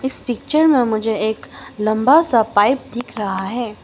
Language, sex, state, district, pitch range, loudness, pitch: Hindi, female, Arunachal Pradesh, Longding, 215-260 Hz, -17 LUFS, 230 Hz